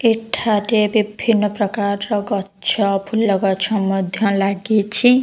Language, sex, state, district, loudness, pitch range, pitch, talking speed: Odia, female, Odisha, Khordha, -18 LUFS, 200-220 Hz, 210 Hz, 105 wpm